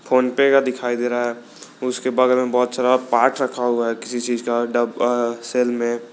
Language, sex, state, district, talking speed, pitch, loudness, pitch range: Hindi, male, Jharkhand, Garhwa, 195 wpm, 120 Hz, -20 LUFS, 120-125 Hz